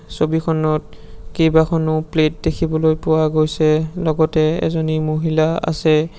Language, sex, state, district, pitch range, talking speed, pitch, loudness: Assamese, male, Assam, Sonitpur, 155-160 Hz, 95 wpm, 160 Hz, -17 LUFS